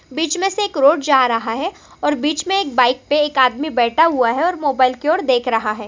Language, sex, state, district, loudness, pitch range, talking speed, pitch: Hindi, female, Bihar, Bhagalpur, -17 LUFS, 250-320 Hz, 245 wpm, 280 Hz